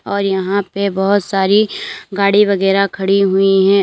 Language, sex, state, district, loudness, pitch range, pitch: Hindi, female, Uttar Pradesh, Lalitpur, -14 LUFS, 195-200 Hz, 200 Hz